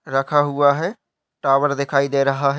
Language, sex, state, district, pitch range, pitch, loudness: Hindi, male, Uttar Pradesh, Jyotiba Phule Nagar, 140-145 Hz, 140 Hz, -19 LUFS